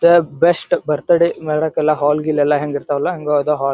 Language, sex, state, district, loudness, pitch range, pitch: Kannada, male, Karnataka, Dharwad, -16 LUFS, 145-165 Hz, 150 Hz